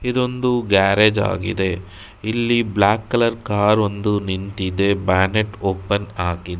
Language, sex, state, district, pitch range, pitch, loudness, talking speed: Kannada, male, Karnataka, Bangalore, 95-110 Hz, 100 Hz, -19 LUFS, 100 wpm